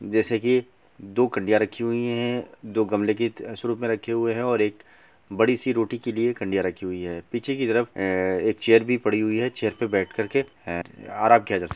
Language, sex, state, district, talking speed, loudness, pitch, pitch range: Hindi, male, Bihar, Gopalganj, 235 wpm, -24 LUFS, 115 Hz, 105-120 Hz